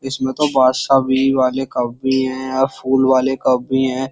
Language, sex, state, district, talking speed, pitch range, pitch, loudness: Hindi, male, Uttar Pradesh, Jyotiba Phule Nagar, 190 wpm, 130-135 Hz, 130 Hz, -17 LUFS